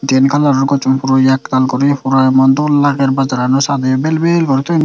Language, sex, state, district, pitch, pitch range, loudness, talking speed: Chakma, male, Tripura, Dhalai, 135 Hz, 130-145 Hz, -12 LUFS, 200 wpm